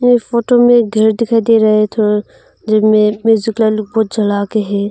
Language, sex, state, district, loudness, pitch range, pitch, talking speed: Hindi, female, Arunachal Pradesh, Longding, -12 LUFS, 215-230 Hz, 220 Hz, 160 wpm